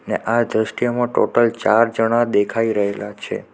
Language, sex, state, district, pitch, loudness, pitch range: Gujarati, male, Gujarat, Navsari, 115 Hz, -18 LUFS, 105-120 Hz